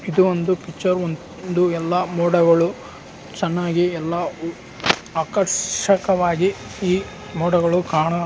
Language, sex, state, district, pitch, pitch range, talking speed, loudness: Kannada, male, Karnataka, Raichur, 175 Hz, 170-185 Hz, 75 wpm, -20 LUFS